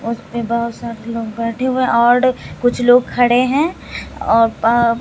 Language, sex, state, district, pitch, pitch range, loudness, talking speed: Hindi, female, Bihar, Katihar, 235 Hz, 230-245 Hz, -16 LUFS, 170 wpm